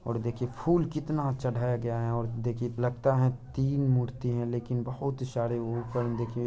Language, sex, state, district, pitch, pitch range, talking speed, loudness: Hindi, male, Bihar, Araria, 125 Hz, 120-130 Hz, 195 wpm, -30 LUFS